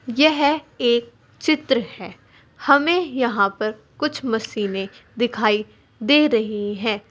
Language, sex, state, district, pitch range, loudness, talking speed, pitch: Hindi, female, Uttar Pradesh, Saharanpur, 215-290 Hz, -20 LUFS, 110 wpm, 240 Hz